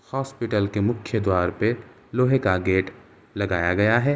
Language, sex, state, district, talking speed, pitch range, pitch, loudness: Hindi, male, Uttar Pradesh, Gorakhpur, 160 wpm, 95-120 Hz, 105 Hz, -23 LUFS